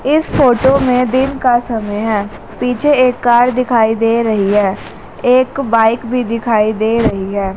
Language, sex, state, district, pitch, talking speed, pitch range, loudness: Hindi, female, Haryana, Rohtak, 240 Hz, 165 wpm, 220-255 Hz, -13 LUFS